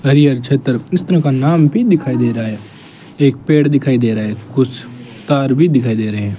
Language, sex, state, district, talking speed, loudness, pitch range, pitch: Hindi, male, Rajasthan, Bikaner, 205 wpm, -14 LUFS, 115-145 Hz, 130 Hz